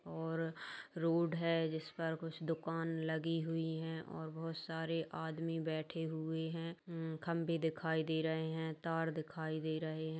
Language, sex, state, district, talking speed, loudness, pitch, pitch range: Hindi, female, Bihar, Purnia, 165 wpm, -40 LUFS, 160 Hz, 160-165 Hz